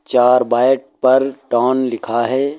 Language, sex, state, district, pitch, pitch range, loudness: Hindi, male, Uttar Pradesh, Lucknow, 130 Hz, 125-130 Hz, -16 LUFS